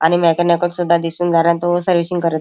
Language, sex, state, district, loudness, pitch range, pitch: Marathi, male, Maharashtra, Chandrapur, -16 LUFS, 165-175 Hz, 170 Hz